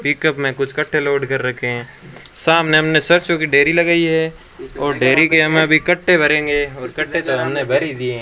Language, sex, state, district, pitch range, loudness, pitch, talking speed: Hindi, male, Rajasthan, Bikaner, 135-160 Hz, -15 LUFS, 150 Hz, 210 wpm